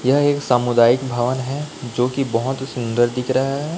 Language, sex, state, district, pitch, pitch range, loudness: Hindi, male, Chhattisgarh, Raipur, 130 Hz, 120-135 Hz, -19 LUFS